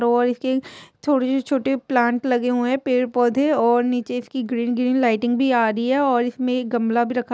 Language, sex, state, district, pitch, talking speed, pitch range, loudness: Hindi, female, Jharkhand, Jamtara, 245 Hz, 220 wpm, 240-260 Hz, -20 LUFS